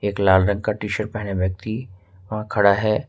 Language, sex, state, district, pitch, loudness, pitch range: Hindi, male, Jharkhand, Ranchi, 100 Hz, -21 LUFS, 95-110 Hz